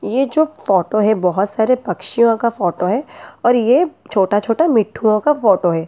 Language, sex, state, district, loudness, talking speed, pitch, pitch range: Hindi, female, Delhi, New Delhi, -16 LUFS, 175 wpm, 220 Hz, 195-250 Hz